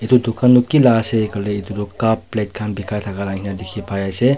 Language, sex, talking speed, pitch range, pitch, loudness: Nagamese, male, 245 wpm, 100-115 Hz, 105 Hz, -18 LUFS